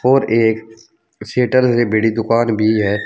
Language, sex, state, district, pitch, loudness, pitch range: Hindi, male, Uttar Pradesh, Saharanpur, 115 Hz, -15 LUFS, 110-120 Hz